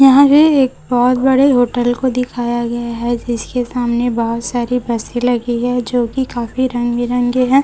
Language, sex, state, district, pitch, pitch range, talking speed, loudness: Hindi, female, Chhattisgarh, Raipur, 245 Hz, 240-255 Hz, 180 wpm, -15 LUFS